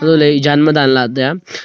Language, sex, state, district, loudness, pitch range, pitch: Wancho, male, Arunachal Pradesh, Longding, -12 LUFS, 135-155 Hz, 145 Hz